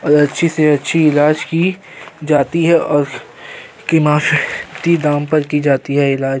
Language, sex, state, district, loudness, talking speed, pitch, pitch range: Hindi, male, Uttar Pradesh, Jyotiba Phule Nagar, -14 LUFS, 150 wpm, 150 Hz, 145-165 Hz